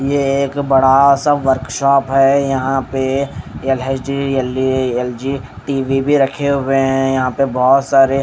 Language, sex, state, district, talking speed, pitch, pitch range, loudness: Hindi, male, Haryana, Rohtak, 130 wpm, 135 Hz, 130-140 Hz, -15 LUFS